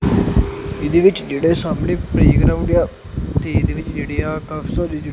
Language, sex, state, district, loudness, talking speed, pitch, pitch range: Punjabi, male, Punjab, Kapurthala, -18 LUFS, 150 wpm, 165 Hz, 150-175 Hz